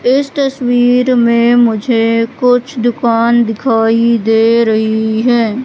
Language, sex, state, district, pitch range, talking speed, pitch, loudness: Hindi, female, Madhya Pradesh, Katni, 225-245 Hz, 105 wpm, 235 Hz, -11 LUFS